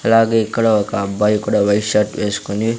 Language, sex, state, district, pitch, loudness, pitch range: Telugu, male, Andhra Pradesh, Sri Satya Sai, 105 Hz, -16 LUFS, 105-115 Hz